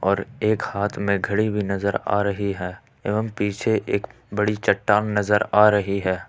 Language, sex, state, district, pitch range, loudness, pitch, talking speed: Hindi, male, Jharkhand, Ranchi, 100-105 Hz, -22 LUFS, 105 Hz, 180 wpm